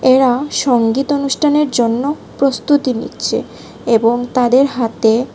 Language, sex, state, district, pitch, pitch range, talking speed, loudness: Bengali, female, Tripura, West Tripura, 255 Hz, 240-280 Hz, 110 wpm, -15 LUFS